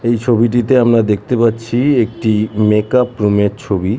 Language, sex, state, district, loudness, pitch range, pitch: Bengali, male, West Bengal, Jhargram, -14 LUFS, 105-120 Hz, 115 Hz